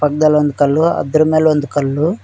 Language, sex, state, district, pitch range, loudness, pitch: Kannada, male, Karnataka, Koppal, 145-155 Hz, -14 LUFS, 150 Hz